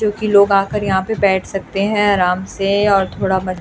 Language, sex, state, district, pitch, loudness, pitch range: Hindi, female, Delhi, New Delhi, 195 Hz, -16 LUFS, 190-205 Hz